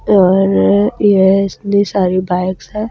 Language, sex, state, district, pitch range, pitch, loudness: Hindi, female, Delhi, New Delhi, 185-200 Hz, 190 Hz, -13 LUFS